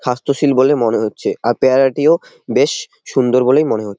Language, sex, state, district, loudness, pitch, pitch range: Bengali, male, West Bengal, Jalpaiguri, -15 LUFS, 130 Hz, 125-140 Hz